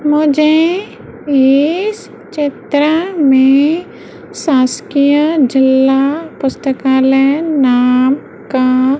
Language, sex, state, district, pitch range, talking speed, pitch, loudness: Hindi, female, Madhya Pradesh, Umaria, 265-305 Hz, 60 wpm, 280 Hz, -12 LUFS